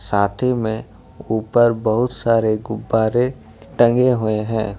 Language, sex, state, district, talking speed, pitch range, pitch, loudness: Hindi, male, Jharkhand, Ranchi, 100 wpm, 110-120 Hz, 110 Hz, -18 LUFS